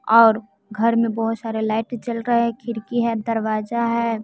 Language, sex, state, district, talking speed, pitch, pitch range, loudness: Hindi, female, Bihar, West Champaran, 185 wpm, 230 Hz, 220-235 Hz, -21 LUFS